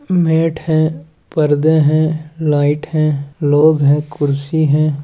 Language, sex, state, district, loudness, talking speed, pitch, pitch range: Hindi, male, Chhattisgarh, Raigarh, -15 LUFS, 130 wpm, 155 Hz, 145-160 Hz